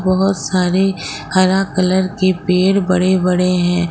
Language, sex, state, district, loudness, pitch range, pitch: Hindi, female, Jharkhand, Ranchi, -15 LUFS, 180-190 Hz, 185 Hz